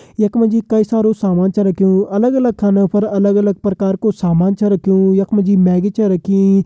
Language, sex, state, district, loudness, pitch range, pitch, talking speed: Hindi, male, Uttarakhand, Uttarkashi, -14 LUFS, 190-215 Hz, 200 Hz, 225 wpm